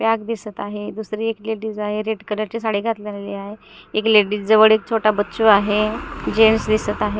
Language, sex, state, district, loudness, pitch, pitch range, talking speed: Marathi, female, Maharashtra, Gondia, -19 LUFS, 215 Hz, 210-220 Hz, 190 wpm